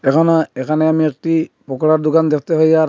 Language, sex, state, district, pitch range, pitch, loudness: Bengali, male, Assam, Hailakandi, 150-160 Hz, 155 Hz, -15 LUFS